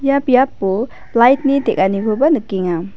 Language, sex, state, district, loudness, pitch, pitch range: Garo, female, Meghalaya, West Garo Hills, -15 LUFS, 235 Hz, 195-275 Hz